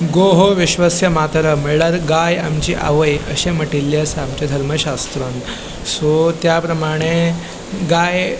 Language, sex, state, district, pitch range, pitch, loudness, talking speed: Konkani, male, Goa, North and South Goa, 150-170 Hz, 160 Hz, -16 LUFS, 130 wpm